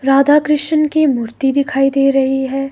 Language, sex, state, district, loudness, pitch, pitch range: Hindi, female, Himachal Pradesh, Shimla, -14 LUFS, 275 Hz, 270-295 Hz